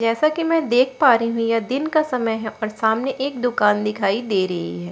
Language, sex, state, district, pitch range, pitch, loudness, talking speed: Hindi, female, Bihar, Katihar, 210-265 Hz, 230 Hz, -20 LUFS, 245 wpm